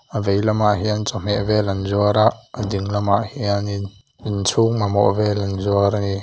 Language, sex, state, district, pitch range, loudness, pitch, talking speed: Mizo, male, Mizoram, Aizawl, 100-105 Hz, -20 LUFS, 105 Hz, 185 wpm